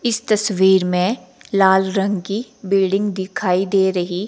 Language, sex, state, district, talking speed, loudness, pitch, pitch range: Hindi, female, Himachal Pradesh, Shimla, 140 wpm, -18 LUFS, 195 Hz, 190-205 Hz